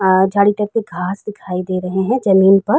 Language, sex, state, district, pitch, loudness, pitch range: Hindi, female, Uttar Pradesh, Jalaun, 195 Hz, -16 LUFS, 185-210 Hz